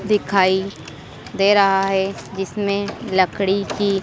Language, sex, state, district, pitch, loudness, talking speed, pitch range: Hindi, female, Madhya Pradesh, Dhar, 195 Hz, -19 LUFS, 105 wpm, 190-200 Hz